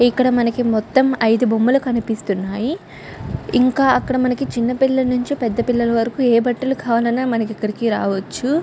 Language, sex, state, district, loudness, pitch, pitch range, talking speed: Telugu, female, Andhra Pradesh, Chittoor, -18 LUFS, 240 Hz, 230-255 Hz, 140 wpm